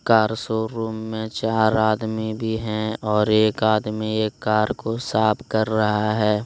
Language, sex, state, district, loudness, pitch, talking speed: Hindi, male, Jharkhand, Deoghar, -22 LUFS, 110 Hz, 160 wpm